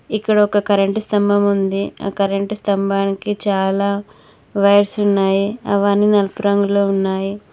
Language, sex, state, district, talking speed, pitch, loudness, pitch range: Telugu, female, Telangana, Mahabubabad, 120 wpm, 200 Hz, -17 LUFS, 195-205 Hz